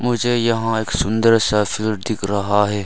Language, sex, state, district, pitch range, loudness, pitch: Hindi, male, Arunachal Pradesh, Longding, 105-115 Hz, -18 LUFS, 110 Hz